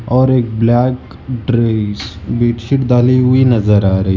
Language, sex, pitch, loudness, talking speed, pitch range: Hindi, male, 120 Hz, -13 LUFS, 145 wpm, 110-125 Hz